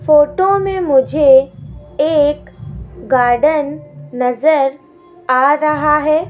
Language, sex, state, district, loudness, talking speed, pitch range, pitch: Hindi, female, Rajasthan, Jaipur, -13 LUFS, 85 wpm, 265-310 Hz, 295 Hz